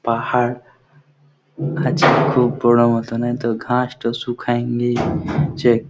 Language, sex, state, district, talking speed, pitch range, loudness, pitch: Bengali, male, West Bengal, Jhargram, 110 wpm, 120-135 Hz, -18 LUFS, 120 Hz